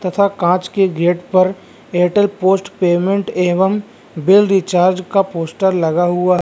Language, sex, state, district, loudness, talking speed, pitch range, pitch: Hindi, male, Bihar, Vaishali, -15 LUFS, 150 wpm, 175-195 Hz, 185 Hz